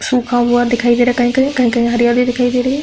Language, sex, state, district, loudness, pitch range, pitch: Hindi, female, Uttar Pradesh, Hamirpur, -14 LUFS, 240-250 Hz, 245 Hz